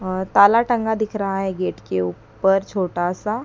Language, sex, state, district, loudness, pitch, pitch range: Hindi, male, Madhya Pradesh, Dhar, -20 LUFS, 195 Hz, 185-215 Hz